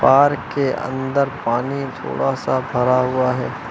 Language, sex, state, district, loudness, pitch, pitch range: Hindi, male, Uttar Pradesh, Lucknow, -19 LUFS, 130 Hz, 125-140 Hz